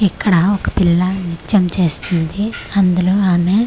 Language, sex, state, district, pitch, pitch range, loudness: Telugu, female, Andhra Pradesh, Manyam, 185 Hz, 175-200 Hz, -15 LUFS